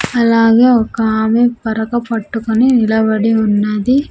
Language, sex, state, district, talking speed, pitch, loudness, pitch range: Telugu, female, Andhra Pradesh, Sri Satya Sai, 100 wpm, 225 Hz, -13 LUFS, 220-240 Hz